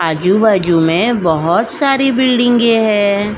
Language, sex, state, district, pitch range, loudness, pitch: Hindi, female, Uttar Pradesh, Jalaun, 170-240 Hz, -12 LUFS, 210 Hz